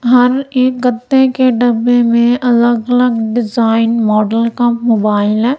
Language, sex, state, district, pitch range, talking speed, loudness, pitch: Hindi, female, Punjab, Kapurthala, 230-250 Hz, 140 wpm, -12 LUFS, 240 Hz